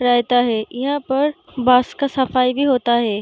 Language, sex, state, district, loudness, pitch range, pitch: Hindi, female, Uttar Pradesh, Gorakhpur, -18 LUFS, 245-270 Hz, 250 Hz